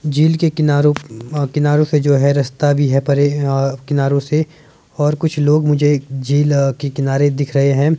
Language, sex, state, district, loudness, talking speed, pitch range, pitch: Hindi, male, Himachal Pradesh, Shimla, -15 LUFS, 170 wpm, 140-150 Hz, 145 Hz